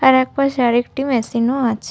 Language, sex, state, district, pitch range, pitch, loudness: Bengali, female, Jharkhand, Sahebganj, 240-270 Hz, 255 Hz, -17 LUFS